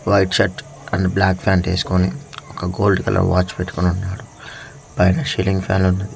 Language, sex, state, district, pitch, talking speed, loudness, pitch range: Telugu, male, Andhra Pradesh, Manyam, 95 Hz, 155 wpm, -18 LUFS, 90-100 Hz